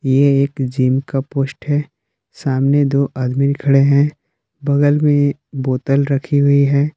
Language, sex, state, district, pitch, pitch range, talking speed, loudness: Hindi, male, Jharkhand, Palamu, 140 Hz, 135-145 Hz, 145 wpm, -16 LUFS